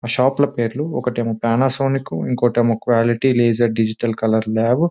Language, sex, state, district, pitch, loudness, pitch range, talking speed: Telugu, male, Telangana, Nalgonda, 120 Hz, -18 LUFS, 115-130 Hz, 160 wpm